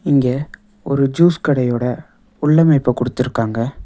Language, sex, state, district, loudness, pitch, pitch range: Tamil, male, Tamil Nadu, Nilgiris, -17 LUFS, 140 Hz, 125-160 Hz